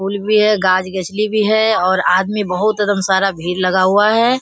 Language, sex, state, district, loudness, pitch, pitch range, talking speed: Hindi, female, Bihar, Kishanganj, -15 LUFS, 200 Hz, 185-215 Hz, 215 wpm